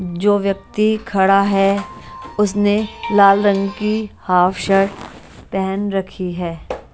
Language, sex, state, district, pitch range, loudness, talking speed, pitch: Hindi, female, Bihar, West Champaran, 190-205 Hz, -17 LUFS, 110 wpm, 195 Hz